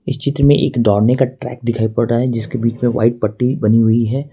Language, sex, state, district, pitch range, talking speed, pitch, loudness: Hindi, male, Jharkhand, Ranchi, 115-130 Hz, 265 wpm, 120 Hz, -15 LUFS